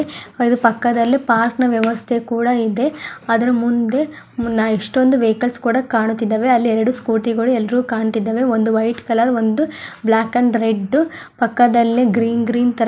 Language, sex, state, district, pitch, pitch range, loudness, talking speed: Kannada, female, Karnataka, Gulbarga, 235 Hz, 225-245 Hz, -17 LUFS, 140 wpm